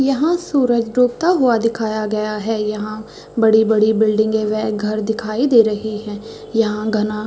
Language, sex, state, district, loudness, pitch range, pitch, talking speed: Hindi, female, Chhattisgarh, Raigarh, -17 LUFS, 215-230 Hz, 220 Hz, 150 wpm